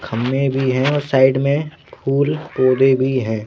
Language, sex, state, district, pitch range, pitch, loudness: Hindi, male, Madhya Pradesh, Bhopal, 130-140 Hz, 135 Hz, -17 LUFS